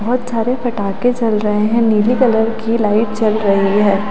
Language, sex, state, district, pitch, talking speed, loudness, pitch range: Hindi, female, Delhi, New Delhi, 220 Hz, 190 wpm, -15 LUFS, 210-235 Hz